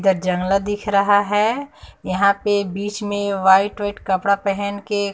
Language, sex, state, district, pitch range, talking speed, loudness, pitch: Hindi, female, Bihar, West Champaran, 195-205 Hz, 165 wpm, -19 LUFS, 200 Hz